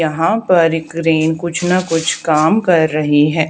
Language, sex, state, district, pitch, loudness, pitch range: Hindi, female, Haryana, Charkhi Dadri, 165 Hz, -14 LUFS, 155-170 Hz